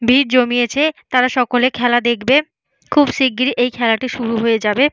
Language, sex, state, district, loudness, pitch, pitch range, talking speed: Bengali, female, West Bengal, Purulia, -15 LUFS, 250 Hz, 240-265 Hz, 160 wpm